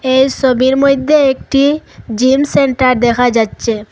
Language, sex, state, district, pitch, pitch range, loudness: Bengali, female, Assam, Hailakandi, 260 Hz, 245-275 Hz, -12 LUFS